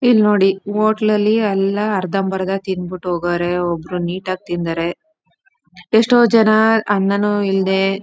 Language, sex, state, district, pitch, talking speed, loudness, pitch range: Kannada, female, Karnataka, Chamarajanagar, 195 Hz, 120 wpm, -17 LUFS, 185-215 Hz